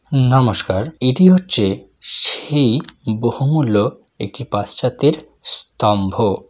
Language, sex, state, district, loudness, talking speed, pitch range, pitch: Bengali, male, West Bengal, Jalpaiguri, -17 LUFS, 75 wpm, 105-140 Hz, 120 Hz